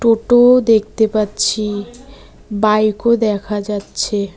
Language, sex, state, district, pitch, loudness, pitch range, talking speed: Bengali, female, West Bengal, Cooch Behar, 215 Hz, -15 LUFS, 205-230 Hz, 80 wpm